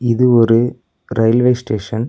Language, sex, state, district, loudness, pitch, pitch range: Tamil, male, Tamil Nadu, Nilgiris, -14 LUFS, 120 Hz, 115-125 Hz